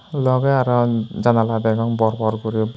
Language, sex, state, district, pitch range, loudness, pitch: Chakma, male, Tripura, Unakoti, 110-125 Hz, -19 LUFS, 115 Hz